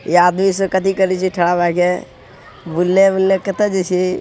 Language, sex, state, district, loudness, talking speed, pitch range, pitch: Hindi, male, Bihar, Araria, -16 LUFS, 200 wpm, 175-195 Hz, 185 Hz